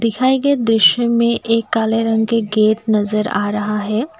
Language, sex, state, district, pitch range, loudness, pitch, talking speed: Hindi, female, Assam, Kamrup Metropolitan, 215-235 Hz, -16 LUFS, 225 Hz, 200 wpm